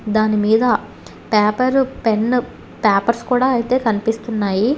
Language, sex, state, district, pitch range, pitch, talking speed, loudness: Telugu, female, Telangana, Hyderabad, 215-250 Hz, 225 Hz, 90 wpm, -17 LUFS